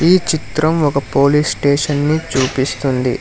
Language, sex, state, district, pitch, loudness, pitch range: Telugu, male, Telangana, Hyderabad, 140 Hz, -15 LUFS, 130-155 Hz